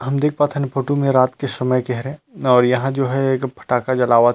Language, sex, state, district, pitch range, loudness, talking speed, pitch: Chhattisgarhi, male, Chhattisgarh, Rajnandgaon, 125-135 Hz, -18 LUFS, 250 wpm, 130 Hz